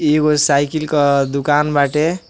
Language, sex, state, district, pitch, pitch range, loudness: Bhojpuri, male, Uttar Pradesh, Deoria, 150 Hz, 140-155 Hz, -15 LUFS